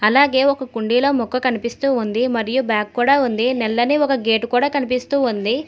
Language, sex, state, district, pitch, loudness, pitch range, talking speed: Telugu, female, Telangana, Hyderabad, 250 Hz, -18 LUFS, 230-270 Hz, 170 wpm